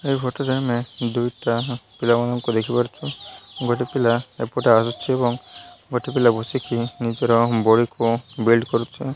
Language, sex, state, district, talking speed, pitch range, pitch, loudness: Odia, male, Odisha, Malkangiri, 150 wpm, 115-125 Hz, 120 Hz, -21 LUFS